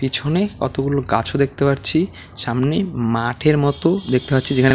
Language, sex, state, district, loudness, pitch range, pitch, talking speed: Bengali, male, West Bengal, Alipurduar, -19 LUFS, 125-150 Hz, 135 Hz, 140 wpm